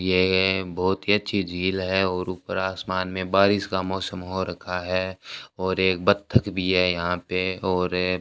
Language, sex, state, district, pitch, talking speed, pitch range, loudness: Hindi, male, Rajasthan, Bikaner, 95 Hz, 185 wpm, 90-95 Hz, -24 LUFS